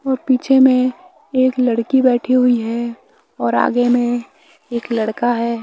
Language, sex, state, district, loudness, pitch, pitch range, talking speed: Hindi, male, Bihar, West Champaran, -17 LUFS, 245 Hz, 235-260 Hz, 150 wpm